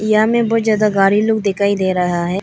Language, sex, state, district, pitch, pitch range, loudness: Hindi, female, Arunachal Pradesh, Lower Dibang Valley, 205 Hz, 195-215 Hz, -15 LUFS